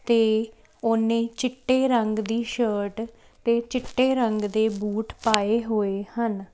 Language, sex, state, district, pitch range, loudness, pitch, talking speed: Punjabi, female, Chandigarh, Chandigarh, 220-235 Hz, -24 LUFS, 225 Hz, 130 wpm